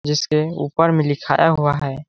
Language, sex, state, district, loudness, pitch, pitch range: Hindi, male, Chhattisgarh, Balrampur, -18 LUFS, 150 Hz, 145-160 Hz